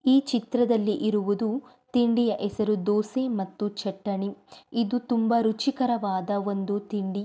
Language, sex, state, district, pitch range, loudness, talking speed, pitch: Kannada, female, Karnataka, Mysore, 205-240 Hz, -26 LUFS, 115 wpm, 215 Hz